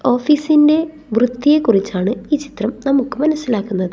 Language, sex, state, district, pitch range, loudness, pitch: Malayalam, female, Kerala, Kasaragod, 220-300 Hz, -16 LUFS, 265 Hz